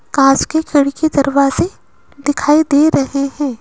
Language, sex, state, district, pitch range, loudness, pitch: Hindi, female, Rajasthan, Jaipur, 275-300 Hz, -14 LUFS, 285 Hz